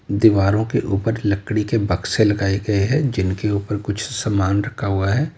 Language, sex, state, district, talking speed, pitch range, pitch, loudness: Hindi, male, Uttar Pradesh, Lalitpur, 180 wpm, 100-115 Hz, 105 Hz, -20 LUFS